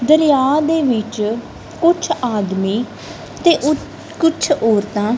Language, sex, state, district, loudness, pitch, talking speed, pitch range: Punjabi, female, Punjab, Kapurthala, -16 LUFS, 250 Hz, 105 wpm, 215-310 Hz